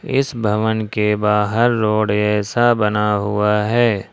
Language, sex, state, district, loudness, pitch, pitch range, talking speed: Hindi, male, Jharkhand, Ranchi, -17 LUFS, 105 Hz, 105-115 Hz, 130 wpm